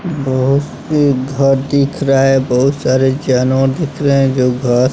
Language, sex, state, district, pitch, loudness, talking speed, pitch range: Hindi, male, Bihar, West Champaran, 135 Hz, -14 LUFS, 170 wpm, 130-140 Hz